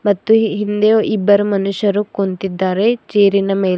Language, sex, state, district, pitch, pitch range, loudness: Kannada, female, Karnataka, Bidar, 205 Hz, 195-210 Hz, -15 LUFS